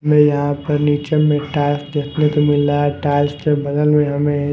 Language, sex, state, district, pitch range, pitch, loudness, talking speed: Hindi, female, Himachal Pradesh, Shimla, 145-150 Hz, 145 Hz, -17 LUFS, 210 wpm